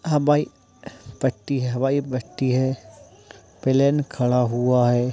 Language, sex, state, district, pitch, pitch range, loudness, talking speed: Hindi, male, Maharashtra, Dhule, 130 Hz, 125-140 Hz, -22 LUFS, 105 wpm